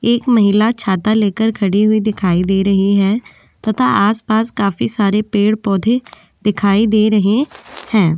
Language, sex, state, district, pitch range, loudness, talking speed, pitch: Hindi, female, Goa, North and South Goa, 200-220 Hz, -15 LUFS, 140 wpm, 210 Hz